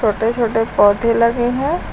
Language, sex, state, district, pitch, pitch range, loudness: Hindi, female, Uttar Pradesh, Lucknow, 230 Hz, 225-240 Hz, -16 LUFS